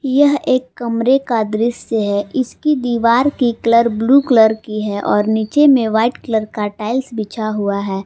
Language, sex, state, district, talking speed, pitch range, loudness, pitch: Hindi, female, Jharkhand, Palamu, 170 wpm, 215-255 Hz, -16 LUFS, 230 Hz